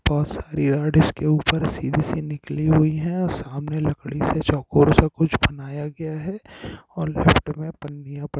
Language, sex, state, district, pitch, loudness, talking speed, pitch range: Hindi, male, Jharkhand, Sahebganj, 150 Hz, -22 LUFS, 180 wpm, 145-160 Hz